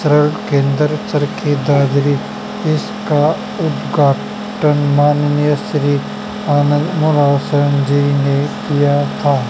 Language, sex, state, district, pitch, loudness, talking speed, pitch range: Hindi, male, Haryana, Charkhi Dadri, 145 Hz, -15 LUFS, 70 wpm, 145-155 Hz